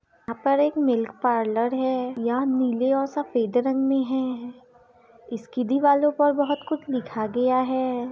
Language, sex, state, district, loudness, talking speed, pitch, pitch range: Hindi, female, Bihar, Gaya, -23 LUFS, 155 wpm, 255 Hz, 240-270 Hz